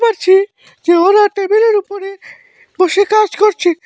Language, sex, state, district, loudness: Bengali, male, Assam, Hailakandi, -12 LUFS